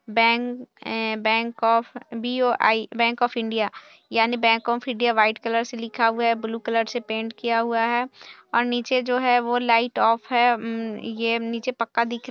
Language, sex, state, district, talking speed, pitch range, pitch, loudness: Hindi, female, Bihar, Saharsa, 190 wpm, 225-240 Hz, 230 Hz, -23 LUFS